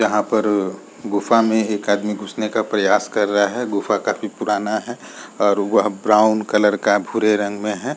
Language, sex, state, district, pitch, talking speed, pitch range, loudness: Hindi, male, Jharkhand, Jamtara, 105 Hz, 165 wpm, 100-110 Hz, -19 LUFS